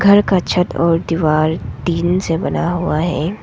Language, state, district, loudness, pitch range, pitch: Hindi, Arunachal Pradesh, Lower Dibang Valley, -16 LUFS, 160-180 Hz, 170 Hz